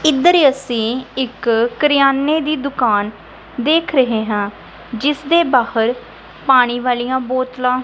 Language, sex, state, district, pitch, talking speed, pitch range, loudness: Punjabi, female, Punjab, Kapurthala, 255 Hz, 120 wpm, 240-280 Hz, -16 LUFS